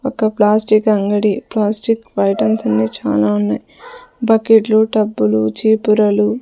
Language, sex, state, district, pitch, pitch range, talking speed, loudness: Telugu, female, Andhra Pradesh, Sri Satya Sai, 215 Hz, 200-225 Hz, 105 wpm, -15 LUFS